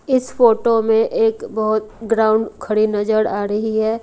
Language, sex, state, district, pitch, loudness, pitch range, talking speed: Hindi, female, Haryana, Rohtak, 220 Hz, -17 LUFS, 215-235 Hz, 165 wpm